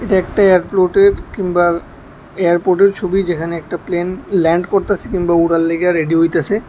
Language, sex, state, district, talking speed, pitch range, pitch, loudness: Bengali, male, Tripura, West Tripura, 145 wpm, 170-190 Hz, 180 Hz, -15 LUFS